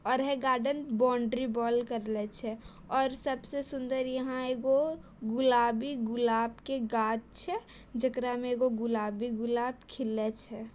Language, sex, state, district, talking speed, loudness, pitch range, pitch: Hindi, female, Bihar, Bhagalpur, 135 wpm, -32 LUFS, 225-260 Hz, 245 Hz